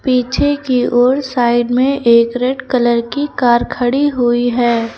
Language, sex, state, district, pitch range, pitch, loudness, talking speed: Hindi, female, Uttar Pradesh, Lucknow, 240-260 Hz, 245 Hz, -14 LUFS, 155 wpm